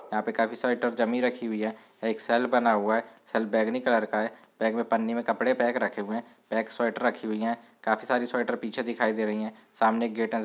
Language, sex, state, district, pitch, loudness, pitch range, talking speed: Hindi, male, Uttar Pradesh, Gorakhpur, 115 Hz, -28 LUFS, 110-120 Hz, 265 wpm